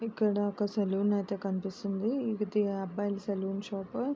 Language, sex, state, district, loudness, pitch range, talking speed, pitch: Telugu, female, Andhra Pradesh, Srikakulam, -32 LUFS, 195-210 Hz, 145 wpm, 205 Hz